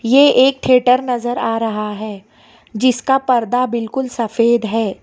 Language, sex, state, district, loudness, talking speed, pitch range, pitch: Hindi, female, Karnataka, Bangalore, -16 LUFS, 145 wpm, 225-255 Hz, 240 Hz